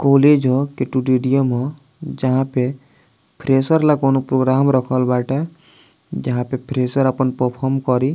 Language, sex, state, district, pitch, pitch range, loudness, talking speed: Bhojpuri, male, Bihar, East Champaran, 130 Hz, 130-140 Hz, -18 LUFS, 135 wpm